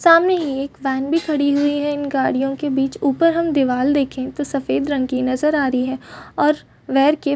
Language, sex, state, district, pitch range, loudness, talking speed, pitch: Hindi, female, Chhattisgarh, Bastar, 270-295 Hz, -19 LUFS, 230 wpm, 285 Hz